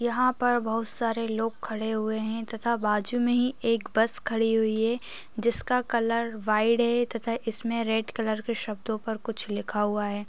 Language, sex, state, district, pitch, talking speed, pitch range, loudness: Hindi, female, Bihar, Darbhanga, 225 Hz, 195 wpm, 220-235 Hz, -26 LUFS